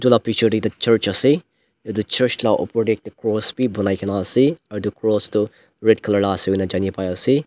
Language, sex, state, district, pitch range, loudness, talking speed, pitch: Nagamese, male, Nagaland, Dimapur, 100-115 Hz, -19 LUFS, 230 wpm, 110 Hz